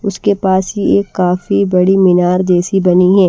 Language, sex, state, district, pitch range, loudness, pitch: Hindi, female, Maharashtra, Washim, 180-200 Hz, -12 LUFS, 190 Hz